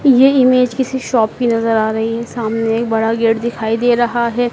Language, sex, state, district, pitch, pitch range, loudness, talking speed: Hindi, female, Madhya Pradesh, Dhar, 235 Hz, 225-245 Hz, -15 LUFS, 225 wpm